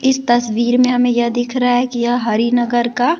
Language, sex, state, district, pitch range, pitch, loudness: Hindi, female, Bihar, West Champaran, 240-250 Hz, 245 Hz, -15 LUFS